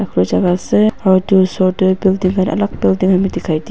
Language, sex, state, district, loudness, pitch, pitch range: Nagamese, female, Nagaland, Dimapur, -14 LUFS, 185 Hz, 180-195 Hz